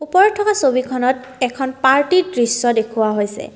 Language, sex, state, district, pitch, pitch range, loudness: Assamese, female, Assam, Kamrup Metropolitan, 255 Hz, 240-300 Hz, -17 LUFS